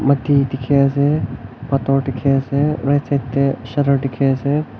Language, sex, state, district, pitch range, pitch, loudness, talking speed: Nagamese, male, Nagaland, Kohima, 135-140 Hz, 140 Hz, -18 LUFS, 140 wpm